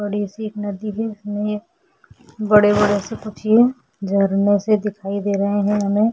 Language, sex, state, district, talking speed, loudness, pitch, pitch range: Hindi, female, Chhattisgarh, Sukma, 175 wpm, -19 LUFS, 210 Hz, 205-215 Hz